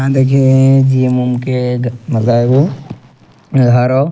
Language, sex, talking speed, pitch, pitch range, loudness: Angika, male, 115 wpm, 130 Hz, 125-135 Hz, -12 LUFS